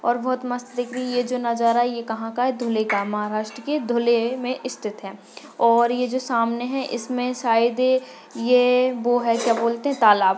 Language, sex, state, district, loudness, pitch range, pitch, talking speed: Hindi, male, Maharashtra, Dhule, -22 LUFS, 230-250 Hz, 240 Hz, 215 wpm